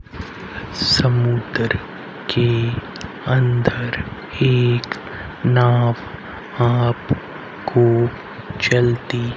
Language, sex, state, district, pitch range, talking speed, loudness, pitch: Hindi, male, Haryana, Rohtak, 120-125 Hz, 50 wpm, -19 LUFS, 120 Hz